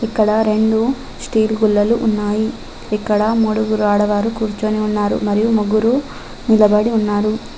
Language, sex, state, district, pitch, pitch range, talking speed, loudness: Telugu, female, Telangana, Adilabad, 215 Hz, 210-220 Hz, 110 wpm, -16 LUFS